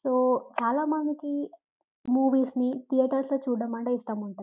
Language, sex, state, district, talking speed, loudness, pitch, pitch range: Telugu, female, Telangana, Karimnagar, 120 wpm, -27 LUFS, 260 Hz, 245-285 Hz